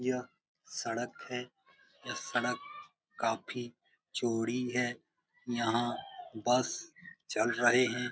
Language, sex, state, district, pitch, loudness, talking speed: Hindi, male, Bihar, Jamui, 125 Hz, -34 LUFS, 95 wpm